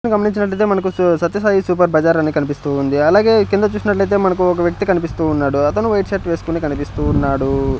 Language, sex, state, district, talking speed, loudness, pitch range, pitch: Telugu, male, Andhra Pradesh, Sri Satya Sai, 175 wpm, -16 LUFS, 150-200 Hz, 175 Hz